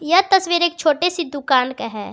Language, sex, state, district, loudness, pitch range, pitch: Hindi, female, Jharkhand, Garhwa, -18 LUFS, 275-350 Hz, 335 Hz